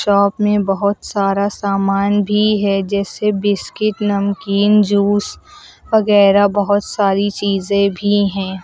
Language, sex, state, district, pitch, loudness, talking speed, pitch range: Hindi, female, Uttar Pradesh, Lucknow, 200 Hz, -15 LUFS, 120 wpm, 200-205 Hz